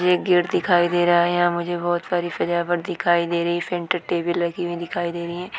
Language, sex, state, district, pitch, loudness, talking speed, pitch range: Hindi, female, West Bengal, Jalpaiguri, 175 Hz, -21 LUFS, 245 wpm, 170-175 Hz